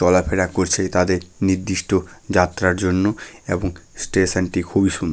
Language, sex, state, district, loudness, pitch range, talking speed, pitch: Bengali, male, West Bengal, Malda, -20 LUFS, 90-95 Hz, 130 wpm, 95 Hz